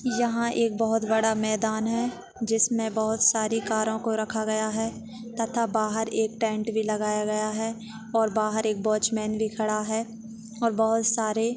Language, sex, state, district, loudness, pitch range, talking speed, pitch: Hindi, female, Chhattisgarh, Jashpur, -26 LUFS, 220-225 Hz, 170 wpm, 220 Hz